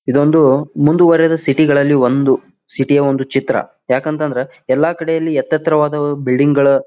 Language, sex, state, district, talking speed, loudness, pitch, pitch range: Kannada, male, Karnataka, Bijapur, 130 wpm, -14 LUFS, 145 Hz, 135-155 Hz